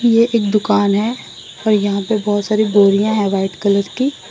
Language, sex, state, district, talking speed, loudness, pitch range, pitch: Hindi, female, Assam, Sonitpur, 195 wpm, -16 LUFS, 200-220 Hz, 210 Hz